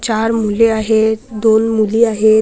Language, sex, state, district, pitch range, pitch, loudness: Marathi, female, Maharashtra, Washim, 220-225 Hz, 220 Hz, -14 LUFS